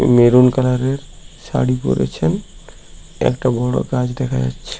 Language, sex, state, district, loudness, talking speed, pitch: Bengali, male, West Bengal, Paschim Medinipur, -17 LUFS, 125 wpm, 125 Hz